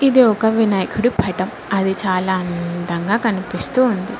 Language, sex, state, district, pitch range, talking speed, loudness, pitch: Telugu, female, Telangana, Mahabubabad, 185-230 Hz, 130 wpm, -18 LUFS, 195 Hz